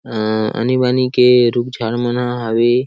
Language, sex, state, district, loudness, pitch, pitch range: Chhattisgarhi, male, Chhattisgarh, Sarguja, -15 LUFS, 120 Hz, 115-125 Hz